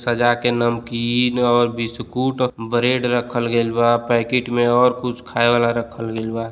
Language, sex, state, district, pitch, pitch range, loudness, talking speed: Bhojpuri, male, Uttar Pradesh, Deoria, 120 Hz, 115-125 Hz, -19 LUFS, 155 wpm